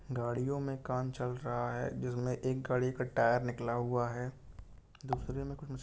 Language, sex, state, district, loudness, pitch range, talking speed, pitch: Hindi, male, Uttar Pradesh, Jalaun, -36 LUFS, 120-130 Hz, 175 wpm, 125 Hz